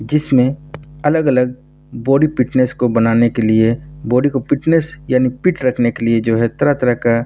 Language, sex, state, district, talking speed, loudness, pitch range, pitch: Hindi, male, Bihar, Purnia, 180 wpm, -15 LUFS, 120-145 Hz, 130 Hz